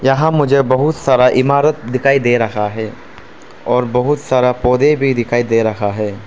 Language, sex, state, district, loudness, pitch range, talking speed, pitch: Hindi, male, Arunachal Pradesh, Papum Pare, -14 LUFS, 115-140 Hz, 170 wpm, 125 Hz